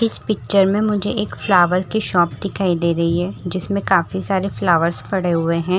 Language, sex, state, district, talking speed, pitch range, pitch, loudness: Hindi, female, Chhattisgarh, Rajnandgaon, 195 wpm, 175-200 Hz, 185 Hz, -18 LUFS